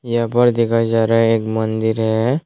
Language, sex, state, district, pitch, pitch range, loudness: Hindi, male, Tripura, West Tripura, 115 Hz, 110-115 Hz, -16 LUFS